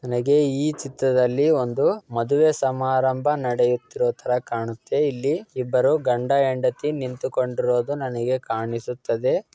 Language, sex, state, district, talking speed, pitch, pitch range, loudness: Kannada, male, Karnataka, Dakshina Kannada, 90 wpm, 130 Hz, 125-145 Hz, -22 LUFS